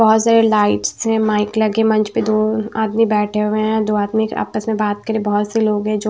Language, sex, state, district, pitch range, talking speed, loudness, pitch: Hindi, female, Maharashtra, Washim, 210-220 Hz, 245 wpm, -17 LUFS, 215 Hz